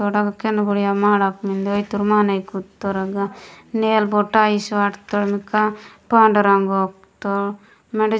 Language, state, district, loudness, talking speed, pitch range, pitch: Gondi, Chhattisgarh, Sukma, -19 LUFS, 130 wpm, 200-210 Hz, 205 Hz